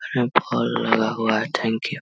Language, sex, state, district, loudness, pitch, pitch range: Hindi, male, Bihar, Vaishali, -22 LUFS, 110 Hz, 110-115 Hz